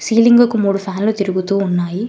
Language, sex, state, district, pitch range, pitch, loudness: Telugu, female, Telangana, Hyderabad, 190-225 Hz, 200 Hz, -15 LUFS